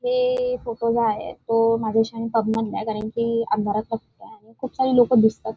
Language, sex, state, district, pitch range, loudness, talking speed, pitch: Marathi, female, Maharashtra, Dhule, 220-245 Hz, -22 LUFS, 160 wpm, 230 Hz